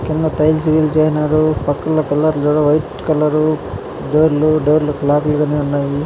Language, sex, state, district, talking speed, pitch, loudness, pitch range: Telugu, male, Andhra Pradesh, Chittoor, 140 wpm, 150 Hz, -15 LUFS, 150-155 Hz